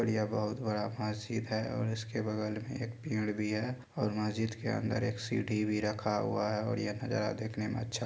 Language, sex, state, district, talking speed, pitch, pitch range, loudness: Maithili, male, Bihar, Supaul, 230 wpm, 110 Hz, 105-115 Hz, -35 LUFS